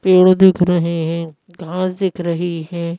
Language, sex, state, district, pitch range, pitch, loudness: Hindi, female, Madhya Pradesh, Bhopal, 170-185 Hz, 175 Hz, -16 LUFS